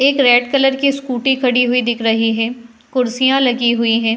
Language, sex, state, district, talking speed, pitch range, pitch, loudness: Hindi, female, Uttar Pradesh, Jalaun, 200 wpm, 235-265 Hz, 245 Hz, -15 LUFS